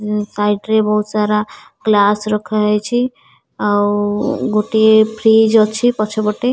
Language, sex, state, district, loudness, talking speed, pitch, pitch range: Odia, female, Odisha, Nuapada, -15 LUFS, 110 wpm, 210 Hz, 210-220 Hz